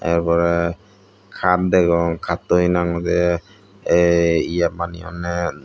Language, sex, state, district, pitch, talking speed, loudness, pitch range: Chakma, male, Tripura, Dhalai, 85 Hz, 105 wpm, -19 LUFS, 85-90 Hz